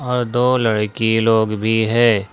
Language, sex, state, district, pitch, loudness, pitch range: Hindi, male, Jharkhand, Ranchi, 110 Hz, -17 LUFS, 110-120 Hz